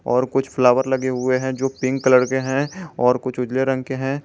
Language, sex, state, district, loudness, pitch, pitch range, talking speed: Hindi, male, Jharkhand, Garhwa, -20 LUFS, 130 Hz, 130-135 Hz, 240 wpm